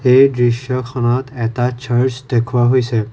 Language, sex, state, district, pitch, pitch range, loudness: Assamese, male, Assam, Kamrup Metropolitan, 125 Hz, 120-130 Hz, -16 LUFS